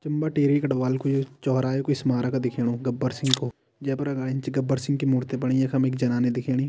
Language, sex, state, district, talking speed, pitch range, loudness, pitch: Kumaoni, male, Uttarakhand, Tehri Garhwal, 235 wpm, 130-135 Hz, -25 LUFS, 130 Hz